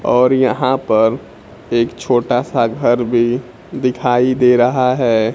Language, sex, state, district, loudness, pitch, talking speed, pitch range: Hindi, male, Bihar, Kaimur, -15 LUFS, 125 Hz, 135 wpm, 120-125 Hz